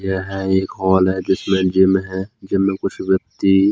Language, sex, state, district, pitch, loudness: Hindi, male, Chandigarh, Chandigarh, 95 Hz, -18 LUFS